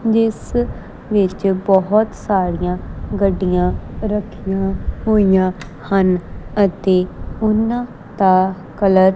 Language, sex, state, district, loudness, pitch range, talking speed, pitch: Punjabi, female, Punjab, Kapurthala, -18 LUFS, 185-210 Hz, 85 wpm, 195 Hz